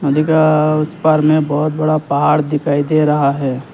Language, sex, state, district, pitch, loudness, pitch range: Hindi, male, Arunachal Pradesh, Lower Dibang Valley, 150 Hz, -14 LUFS, 145-155 Hz